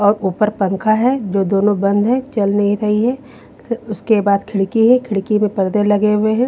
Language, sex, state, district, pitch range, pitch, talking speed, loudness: Hindi, female, Haryana, Rohtak, 200-225 Hz, 210 Hz, 205 wpm, -16 LUFS